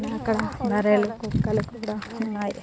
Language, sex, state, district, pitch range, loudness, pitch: Telugu, female, Andhra Pradesh, Srikakulam, 210-225 Hz, -25 LUFS, 215 Hz